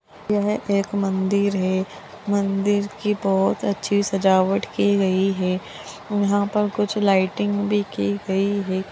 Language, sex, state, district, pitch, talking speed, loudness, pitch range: Magahi, female, Bihar, Gaya, 200 Hz, 135 wpm, -21 LUFS, 190-205 Hz